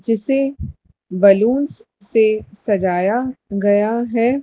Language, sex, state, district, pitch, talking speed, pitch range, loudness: Hindi, male, Madhya Pradesh, Dhar, 220 Hz, 80 wpm, 200-240 Hz, -16 LUFS